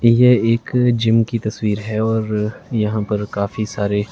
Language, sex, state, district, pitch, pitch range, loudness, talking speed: Hindi, male, Himachal Pradesh, Shimla, 110 Hz, 105-115 Hz, -18 LUFS, 160 wpm